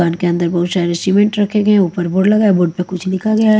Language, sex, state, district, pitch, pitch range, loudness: Hindi, female, Haryana, Charkhi Dadri, 185 Hz, 175-210 Hz, -14 LUFS